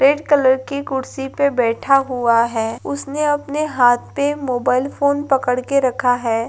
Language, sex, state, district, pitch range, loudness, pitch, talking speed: Hindi, female, Andhra Pradesh, Anantapur, 245-285 Hz, -18 LUFS, 270 Hz, 175 wpm